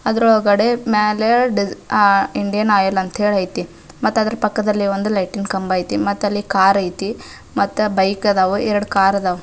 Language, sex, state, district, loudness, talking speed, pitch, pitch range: Kannada, female, Karnataka, Dharwad, -17 LUFS, 140 wpm, 205 Hz, 195-215 Hz